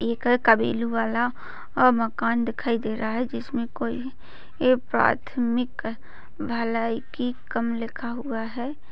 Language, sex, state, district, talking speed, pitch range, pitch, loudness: Hindi, female, Maharashtra, Sindhudurg, 115 wpm, 230-250 Hz, 235 Hz, -25 LUFS